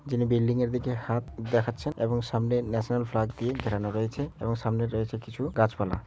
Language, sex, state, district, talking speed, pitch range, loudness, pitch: Bengali, male, West Bengal, Malda, 180 wpm, 110-120 Hz, -29 LUFS, 115 Hz